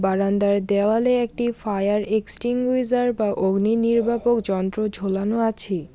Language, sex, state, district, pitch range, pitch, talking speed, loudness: Bengali, female, West Bengal, Alipurduar, 200-235 Hz, 215 Hz, 110 wpm, -21 LUFS